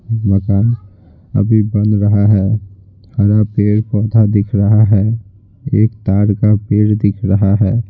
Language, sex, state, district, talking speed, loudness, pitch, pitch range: Hindi, male, Bihar, Patna, 130 wpm, -13 LUFS, 105 Hz, 100-110 Hz